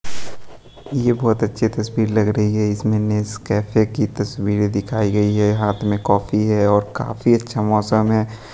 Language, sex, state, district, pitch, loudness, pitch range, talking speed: Hindi, male, Bihar, West Champaran, 110 Hz, -19 LUFS, 105-110 Hz, 170 wpm